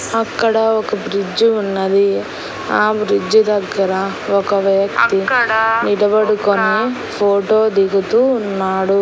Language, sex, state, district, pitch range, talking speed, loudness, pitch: Telugu, female, Andhra Pradesh, Annamaya, 195-220 Hz, 85 wpm, -15 LUFS, 205 Hz